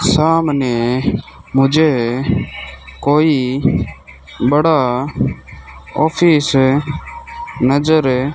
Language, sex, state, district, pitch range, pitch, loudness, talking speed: Hindi, male, Rajasthan, Bikaner, 120-155 Hz, 135 Hz, -15 LUFS, 50 wpm